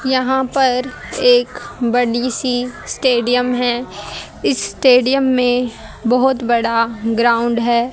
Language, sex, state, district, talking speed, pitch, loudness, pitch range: Hindi, female, Haryana, Charkhi Dadri, 105 wpm, 245 Hz, -16 LUFS, 235-255 Hz